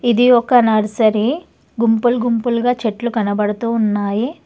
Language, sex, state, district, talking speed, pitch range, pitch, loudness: Telugu, female, Telangana, Hyderabad, 105 wpm, 215-240 Hz, 230 Hz, -16 LUFS